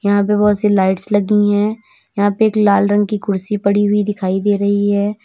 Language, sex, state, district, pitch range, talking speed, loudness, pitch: Hindi, female, Uttar Pradesh, Lalitpur, 200-210 Hz, 230 wpm, -15 LUFS, 205 Hz